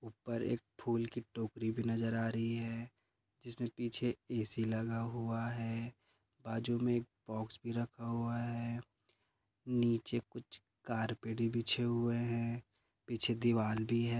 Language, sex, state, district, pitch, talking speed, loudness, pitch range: Hindi, male, Goa, North and South Goa, 115 Hz, 145 wpm, -38 LUFS, 115-120 Hz